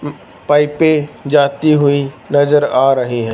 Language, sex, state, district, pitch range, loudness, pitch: Hindi, male, Punjab, Fazilka, 135-150 Hz, -13 LUFS, 145 Hz